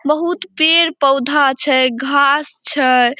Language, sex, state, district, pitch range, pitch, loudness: Maithili, female, Bihar, Samastipur, 265-315 Hz, 285 Hz, -14 LUFS